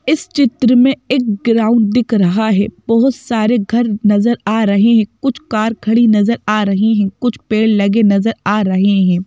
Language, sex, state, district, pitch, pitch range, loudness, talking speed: Hindi, female, Madhya Pradesh, Bhopal, 220 Hz, 210-235 Hz, -13 LUFS, 190 wpm